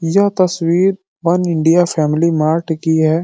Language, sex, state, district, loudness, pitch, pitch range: Hindi, male, Uttar Pradesh, Deoria, -15 LUFS, 170 Hz, 160-180 Hz